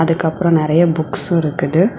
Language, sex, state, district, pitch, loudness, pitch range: Tamil, female, Tamil Nadu, Kanyakumari, 165 Hz, -16 LUFS, 160-170 Hz